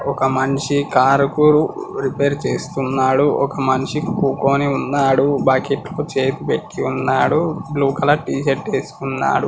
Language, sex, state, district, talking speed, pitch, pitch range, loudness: Telugu, male, Telangana, Karimnagar, 110 wpm, 140 Hz, 135-150 Hz, -18 LUFS